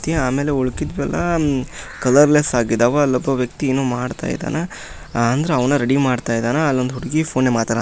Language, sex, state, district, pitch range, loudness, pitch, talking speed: Kannada, male, Karnataka, Dharwad, 125-145 Hz, -18 LUFS, 130 Hz, 160 wpm